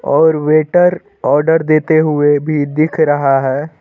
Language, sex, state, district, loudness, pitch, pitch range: Hindi, male, Uttar Pradesh, Lucknow, -13 LUFS, 155 Hz, 145-160 Hz